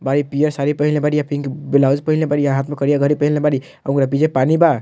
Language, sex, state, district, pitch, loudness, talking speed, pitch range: Bhojpuri, male, Bihar, Muzaffarpur, 145 Hz, -17 LUFS, 250 wpm, 140-150 Hz